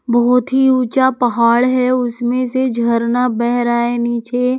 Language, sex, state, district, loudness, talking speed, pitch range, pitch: Hindi, female, Jharkhand, Palamu, -15 LUFS, 155 wpm, 235-255 Hz, 245 Hz